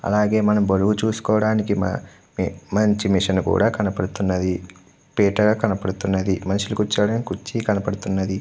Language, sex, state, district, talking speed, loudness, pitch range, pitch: Telugu, male, Andhra Pradesh, Guntur, 105 wpm, -21 LUFS, 95-105 Hz, 100 Hz